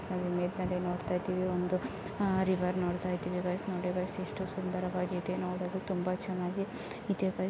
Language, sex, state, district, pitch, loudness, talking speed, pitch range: Kannada, female, Karnataka, Gulbarga, 185 Hz, -34 LUFS, 150 wpm, 180-190 Hz